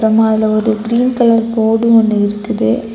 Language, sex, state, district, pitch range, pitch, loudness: Tamil, female, Tamil Nadu, Kanyakumari, 215-230 Hz, 220 Hz, -13 LUFS